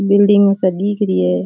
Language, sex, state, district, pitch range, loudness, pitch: Rajasthani, male, Rajasthan, Churu, 185-205 Hz, -14 LUFS, 200 Hz